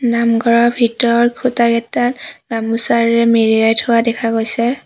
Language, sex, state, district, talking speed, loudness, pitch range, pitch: Assamese, female, Assam, Sonitpur, 100 wpm, -14 LUFS, 230-235 Hz, 235 Hz